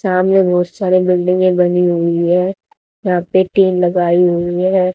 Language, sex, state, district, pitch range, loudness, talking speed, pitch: Hindi, female, Haryana, Jhajjar, 175-185 Hz, -14 LUFS, 155 wpm, 180 Hz